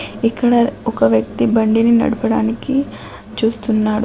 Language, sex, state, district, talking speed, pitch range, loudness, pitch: Telugu, female, Telangana, Adilabad, 90 wpm, 220-235 Hz, -16 LUFS, 225 Hz